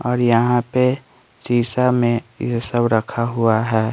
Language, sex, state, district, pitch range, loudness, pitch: Hindi, male, Bihar, Patna, 115-125 Hz, -18 LUFS, 120 Hz